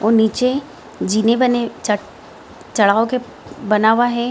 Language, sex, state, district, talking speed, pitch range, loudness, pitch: Hindi, female, Bihar, Gaya, 125 wpm, 215-245 Hz, -17 LUFS, 225 Hz